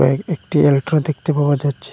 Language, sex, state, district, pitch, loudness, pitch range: Bengali, male, Assam, Hailakandi, 145 Hz, -17 LUFS, 140-155 Hz